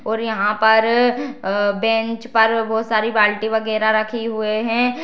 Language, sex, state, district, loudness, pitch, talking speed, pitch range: Hindi, female, Bihar, Darbhanga, -18 LUFS, 220 Hz, 155 wpm, 215-230 Hz